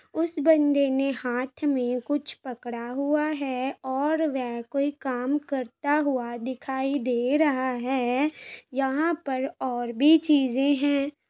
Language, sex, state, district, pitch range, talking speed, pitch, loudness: Hindi, female, Uttar Pradesh, Varanasi, 255-290 Hz, 135 wpm, 275 Hz, -26 LUFS